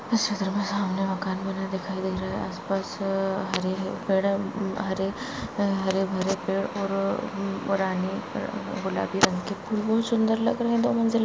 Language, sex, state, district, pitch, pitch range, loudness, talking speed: Hindi, female, Chhattisgarh, Sarguja, 195 Hz, 190-205 Hz, -27 LUFS, 160 wpm